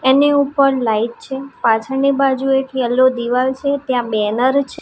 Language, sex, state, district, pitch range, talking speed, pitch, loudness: Gujarati, female, Gujarat, Gandhinagar, 245-275 Hz, 160 wpm, 265 Hz, -16 LUFS